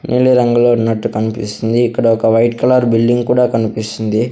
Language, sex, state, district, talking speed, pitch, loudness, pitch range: Telugu, male, Andhra Pradesh, Sri Satya Sai, 155 wpm, 115 Hz, -14 LUFS, 110-120 Hz